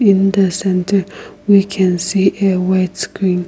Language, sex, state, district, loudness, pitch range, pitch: English, female, Nagaland, Kohima, -15 LUFS, 185-195 Hz, 190 Hz